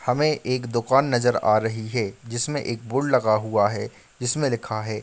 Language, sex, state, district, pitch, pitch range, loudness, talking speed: Hindi, male, Bihar, Kishanganj, 120 Hz, 110-130 Hz, -23 LUFS, 225 wpm